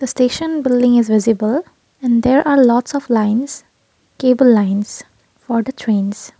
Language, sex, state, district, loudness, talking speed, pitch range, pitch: English, female, Assam, Kamrup Metropolitan, -15 LUFS, 140 wpm, 225-265 Hz, 245 Hz